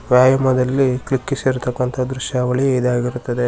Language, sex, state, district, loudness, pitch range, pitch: Kannada, male, Karnataka, Shimoga, -18 LUFS, 125-130 Hz, 125 Hz